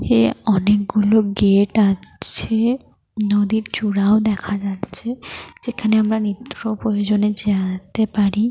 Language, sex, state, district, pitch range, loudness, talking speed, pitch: Bengali, female, Jharkhand, Jamtara, 200-220 Hz, -18 LUFS, 105 wpm, 210 Hz